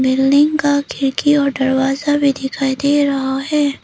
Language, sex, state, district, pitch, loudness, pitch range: Hindi, female, Arunachal Pradesh, Papum Pare, 275 Hz, -16 LUFS, 270-290 Hz